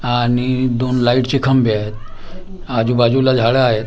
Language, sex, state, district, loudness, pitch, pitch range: Marathi, male, Maharashtra, Gondia, -15 LUFS, 125 Hz, 115-130 Hz